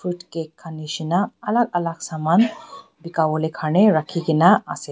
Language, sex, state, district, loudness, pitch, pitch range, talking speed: Nagamese, female, Nagaland, Dimapur, -20 LUFS, 170 Hz, 160-210 Hz, 160 wpm